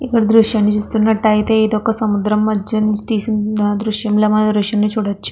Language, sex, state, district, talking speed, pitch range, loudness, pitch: Telugu, female, Andhra Pradesh, Krishna, 135 wpm, 210-220 Hz, -15 LUFS, 215 Hz